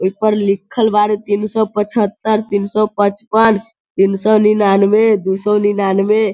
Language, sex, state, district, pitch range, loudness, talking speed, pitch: Hindi, male, Bihar, Sitamarhi, 200-215 Hz, -14 LUFS, 125 wpm, 210 Hz